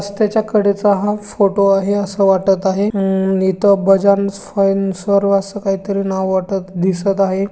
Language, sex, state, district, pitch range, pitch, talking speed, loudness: Marathi, female, Maharashtra, Chandrapur, 195-200 Hz, 195 Hz, 175 wpm, -15 LUFS